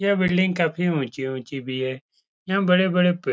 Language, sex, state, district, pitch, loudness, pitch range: Hindi, male, Uttar Pradesh, Etah, 175 Hz, -22 LUFS, 130-185 Hz